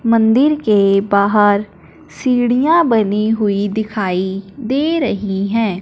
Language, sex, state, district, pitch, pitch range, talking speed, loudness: Hindi, female, Punjab, Fazilka, 215 Hz, 200-245 Hz, 105 wpm, -15 LUFS